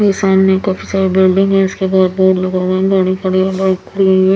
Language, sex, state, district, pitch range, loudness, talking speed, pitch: Hindi, female, Bihar, Patna, 185-195 Hz, -13 LUFS, 275 wpm, 190 Hz